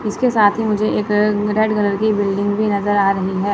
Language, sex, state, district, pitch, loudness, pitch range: Hindi, female, Chandigarh, Chandigarh, 210 Hz, -17 LUFS, 200-215 Hz